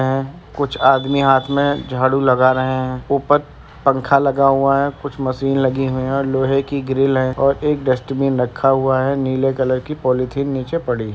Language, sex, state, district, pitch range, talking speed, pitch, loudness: Hindi, male, Uttar Pradesh, Etah, 130-140 Hz, 200 wpm, 135 Hz, -17 LUFS